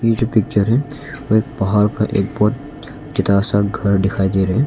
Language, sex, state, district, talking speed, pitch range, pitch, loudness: Hindi, male, Arunachal Pradesh, Longding, 205 wpm, 100-135 Hz, 110 Hz, -17 LUFS